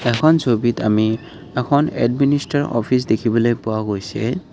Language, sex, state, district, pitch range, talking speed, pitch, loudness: Assamese, male, Assam, Kamrup Metropolitan, 110-140 Hz, 120 wpm, 120 Hz, -18 LUFS